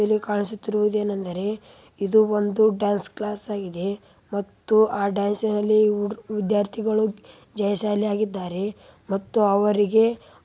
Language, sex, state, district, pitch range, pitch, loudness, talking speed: Kannada, female, Karnataka, Raichur, 200-215 Hz, 210 Hz, -23 LUFS, 85 wpm